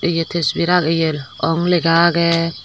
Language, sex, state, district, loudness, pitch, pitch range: Chakma, female, Tripura, Dhalai, -16 LUFS, 165 Hz, 165-170 Hz